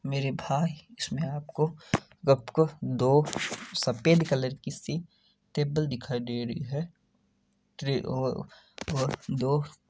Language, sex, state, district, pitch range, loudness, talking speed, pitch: Hindi, male, Rajasthan, Nagaur, 135-165 Hz, -29 LUFS, 110 wpm, 150 Hz